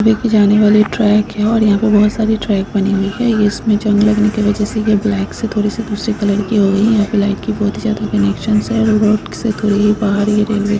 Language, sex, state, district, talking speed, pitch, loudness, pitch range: Bhojpuri, female, Uttar Pradesh, Gorakhpur, 270 wpm, 210 Hz, -14 LUFS, 205-215 Hz